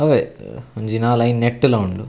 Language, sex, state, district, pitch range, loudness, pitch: Tulu, male, Karnataka, Dakshina Kannada, 110-120 Hz, -18 LUFS, 120 Hz